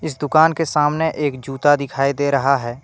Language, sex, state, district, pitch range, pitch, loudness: Hindi, male, Jharkhand, Deoghar, 135-155 Hz, 145 Hz, -18 LUFS